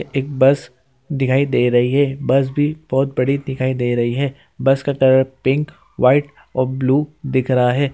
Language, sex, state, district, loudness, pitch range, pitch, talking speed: Hindi, male, Bihar, Gaya, -18 LUFS, 130-140 Hz, 135 Hz, 180 wpm